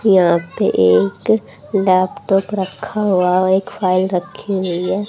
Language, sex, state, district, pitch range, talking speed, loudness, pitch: Hindi, female, Haryana, Rohtak, 180-200 Hz, 130 wpm, -16 LUFS, 185 Hz